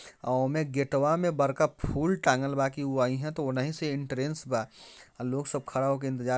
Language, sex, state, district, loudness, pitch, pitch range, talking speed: Bajjika, male, Bihar, Vaishali, -29 LUFS, 140 Hz, 130-150 Hz, 195 wpm